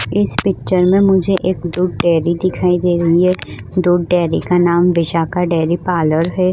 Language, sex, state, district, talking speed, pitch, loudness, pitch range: Hindi, female, Goa, North and South Goa, 175 wpm, 175 Hz, -15 LUFS, 170-185 Hz